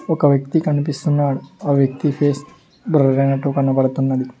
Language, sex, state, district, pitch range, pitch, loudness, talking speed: Telugu, male, Telangana, Mahabubabad, 135-150 Hz, 140 Hz, -18 LUFS, 120 wpm